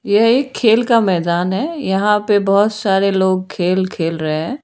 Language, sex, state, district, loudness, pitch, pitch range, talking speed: Hindi, female, Karnataka, Bangalore, -15 LUFS, 195 Hz, 185-220 Hz, 195 wpm